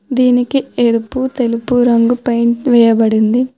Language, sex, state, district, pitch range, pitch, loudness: Telugu, female, Telangana, Hyderabad, 230-255 Hz, 240 Hz, -13 LUFS